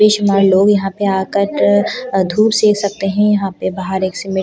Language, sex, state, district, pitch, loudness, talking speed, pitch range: Hindi, female, Delhi, New Delhi, 195 Hz, -14 LUFS, 255 wpm, 190-205 Hz